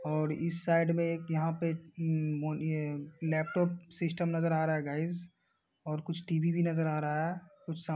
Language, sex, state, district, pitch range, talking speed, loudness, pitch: Hindi, male, Uttar Pradesh, Hamirpur, 155-170 Hz, 195 wpm, -33 LUFS, 165 Hz